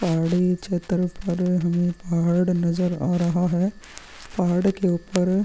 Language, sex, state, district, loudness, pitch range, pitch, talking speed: Hindi, male, Chhattisgarh, Sukma, -23 LUFS, 175-180 Hz, 180 Hz, 130 wpm